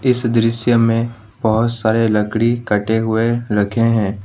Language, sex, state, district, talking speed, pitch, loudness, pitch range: Hindi, male, Jharkhand, Ranchi, 140 wpm, 115 Hz, -16 LUFS, 110-115 Hz